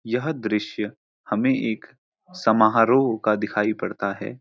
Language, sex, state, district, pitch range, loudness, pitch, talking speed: Hindi, male, Uttarakhand, Uttarkashi, 110-160 Hz, -22 LUFS, 115 Hz, 120 wpm